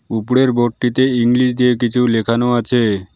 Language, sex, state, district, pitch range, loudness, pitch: Bengali, male, West Bengal, Alipurduar, 115-125 Hz, -15 LUFS, 120 Hz